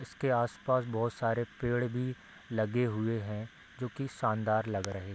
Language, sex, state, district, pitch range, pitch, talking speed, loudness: Hindi, male, Bihar, Gopalganj, 110-125 Hz, 115 Hz, 175 wpm, -33 LUFS